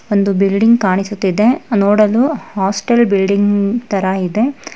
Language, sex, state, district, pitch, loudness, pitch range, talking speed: Kannada, female, Karnataka, Bangalore, 205 Hz, -14 LUFS, 195-230 Hz, 100 wpm